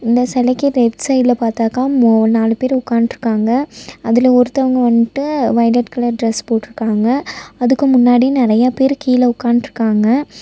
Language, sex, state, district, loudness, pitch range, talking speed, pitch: Tamil, female, Tamil Nadu, Nilgiris, -14 LUFS, 230-260 Hz, 125 wpm, 245 Hz